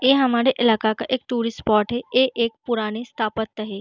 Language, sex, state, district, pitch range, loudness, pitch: Hindi, female, Uttar Pradesh, Deoria, 220-250 Hz, -21 LUFS, 230 Hz